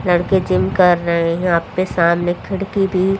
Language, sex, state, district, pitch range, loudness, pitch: Hindi, female, Haryana, Rohtak, 170-190 Hz, -16 LUFS, 180 Hz